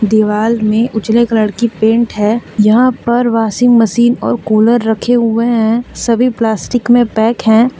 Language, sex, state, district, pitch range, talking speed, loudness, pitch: Hindi, female, Jharkhand, Deoghar, 220-240 Hz, 160 wpm, -12 LUFS, 230 Hz